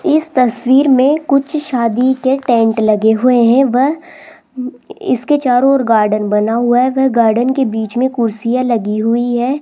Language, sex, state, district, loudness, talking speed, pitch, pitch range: Hindi, female, Rajasthan, Jaipur, -13 LUFS, 170 wpm, 250 Hz, 230-270 Hz